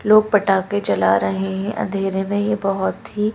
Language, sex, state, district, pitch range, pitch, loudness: Hindi, female, Madhya Pradesh, Bhopal, 190-210 Hz, 195 Hz, -19 LUFS